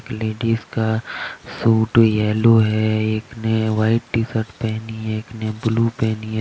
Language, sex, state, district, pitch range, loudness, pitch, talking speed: Hindi, male, Jharkhand, Deoghar, 110-115 Hz, -20 LUFS, 110 Hz, 180 wpm